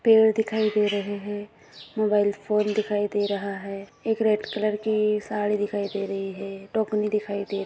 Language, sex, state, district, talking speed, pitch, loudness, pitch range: Hindi, female, Maharashtra, Aurangabad, 190 wpm, 210 Hz, -25 LUFS, 200-215 Hz